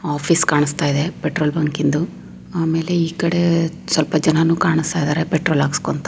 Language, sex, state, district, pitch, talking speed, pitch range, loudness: Kannada, female, Karnataka, Raichur, 160 Hz, 120 wpm, 150-165 Hz, -18 LUFS